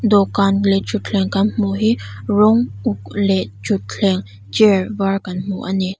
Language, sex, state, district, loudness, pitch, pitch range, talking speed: Mizo, female, Mizoram, Aizawl, -18 LUFS, 195 Hz, 180-205 Hz, 160 wpm